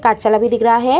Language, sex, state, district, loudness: Hindi, female, Bihar, Jamui, -14 LUFS